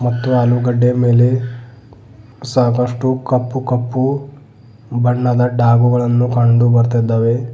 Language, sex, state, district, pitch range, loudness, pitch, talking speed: Kannada, male, Karnataka, Bidar, 120-125 Hz, -15 LUFS, 120 Hz, 70 wpm